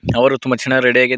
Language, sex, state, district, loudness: Kannada, male, Karnataka, Koppal, -15 LUFS